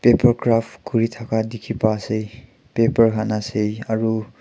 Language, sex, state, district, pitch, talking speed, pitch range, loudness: Nagamese, male, Nagaland, Kohima, 115 Hz, 150 wpm, 110-115 Hz, -21 LUFS